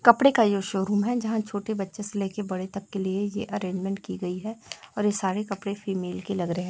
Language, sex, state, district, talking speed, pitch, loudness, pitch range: Hindi, female, Chhattisgarh, Raipur, 250 wpm, 200 Hz, -27 LUFS, 190-210 Hz